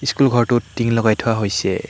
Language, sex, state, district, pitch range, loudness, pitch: Assamese, male, Assam, Hailakandi, 110-120 Hz, -18 LUFS, 115 Hz